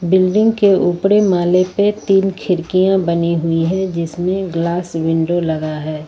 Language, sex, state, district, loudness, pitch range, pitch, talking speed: Hindi, female, Jharkhand, Ranchi, -16 LUFS, 170-190 Hz, 180 Hz, 150 wpm